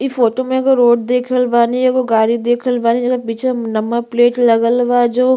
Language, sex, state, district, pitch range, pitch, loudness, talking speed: Bhojpuri, female, Uttar Pradesh, Ghazipur, 235-255 Hz, 245 Hz, -14 LUFS, 245 wpm